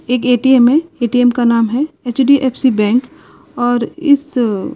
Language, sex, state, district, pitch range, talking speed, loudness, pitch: Hindi, female, Odisha, Sambalpur, 240-275 Hz, 150 wpm, -13 LUFS, 250 Hz